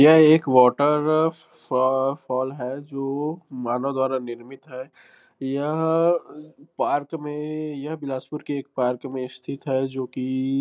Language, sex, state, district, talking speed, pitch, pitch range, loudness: Hindi, male, Chhattisgarh, Bilaspur, 130 wpm, 140 Hz, 130-150 Hz, -23 LUFS